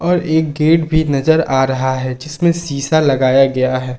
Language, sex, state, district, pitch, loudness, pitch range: Hindi, male, Jharkhand, Ranchi, 145 Hz, -15 LUFS, 130-160 Hz